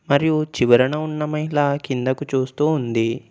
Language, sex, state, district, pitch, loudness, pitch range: Telugu, male, Telangana, Komaram Bheem, 140 Hz, -20 LUFS, 130-150 Hz